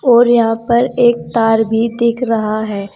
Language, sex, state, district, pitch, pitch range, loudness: Hindi, female, Uttar Pradesh, Saharanpur, 230 Hz, 225-240 Hz, -14 LUFS